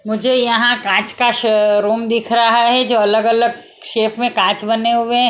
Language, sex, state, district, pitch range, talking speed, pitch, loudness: Hindi, female, Punjab, Kapurthala, 220-240 Hz, 190 wpm, 230 Hz, -14 LUFS